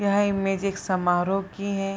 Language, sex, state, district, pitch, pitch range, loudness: Hindi, female, Bihar, Bhagalpur, 195 Hz, 190-200 Hz, -25 LUFS